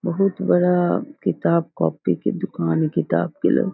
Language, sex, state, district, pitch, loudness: Hindi, female, Bihar, Muzaffarpur, 170 Hz, -21 LUFS